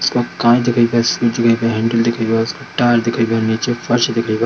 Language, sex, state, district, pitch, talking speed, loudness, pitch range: Hindi, male, Bihar, Darbhanga, 115 Hz, 95 wpm, -16 LUFS, 115-120 Hz